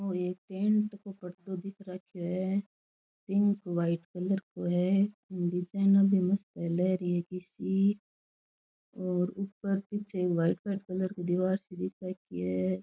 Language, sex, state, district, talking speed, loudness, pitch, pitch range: Rajasthani, female, Rajasthan, Churu, 155 wpm, -31 LUFS, 185 Hz, 180-195 Hz